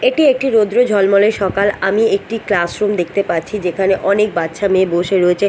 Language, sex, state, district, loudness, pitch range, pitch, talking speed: Bengali, female, Bihar, Katihar, -15 LUFS, 185-210 Hz, 200 Hz, 185 wpm